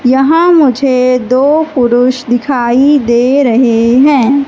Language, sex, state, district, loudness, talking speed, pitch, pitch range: Hindi, female, Madhya Pradesh, Katni, -9 LUFS, 105 wpm, 255 Hz, 245-280 Hz